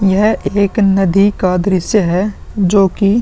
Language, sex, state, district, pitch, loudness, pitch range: Hindi, male, Uttar Pradesh, Muzaffarnagar, 195 Hz, -13 LUFS, 190-205 Hz